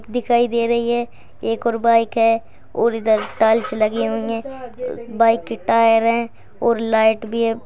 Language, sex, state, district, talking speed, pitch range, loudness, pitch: Hindi, female, Bihar, Gaya, 170 wpm, 225-235 Hz, -18 LUFS, 230 Hz